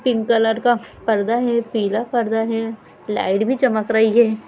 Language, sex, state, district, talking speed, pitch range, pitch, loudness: Hindi, female, Bihar, Jahanabad, 175 wpm, 220-235 Hz, 225 Hz, -19 LUFS